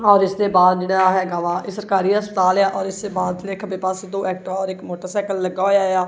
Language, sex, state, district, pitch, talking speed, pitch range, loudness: Punjabi, female, Punjab, Kapurthala, 190 Hz, 255 wpm, 185-195 Hz, -19 LUFS